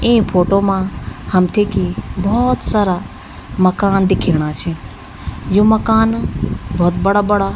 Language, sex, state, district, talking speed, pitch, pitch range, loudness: Garhwali, female, Uttarakhand, Tehri Garhwal, 120 wpm, 195 Hz, 175-210 Hz, -15 LUFS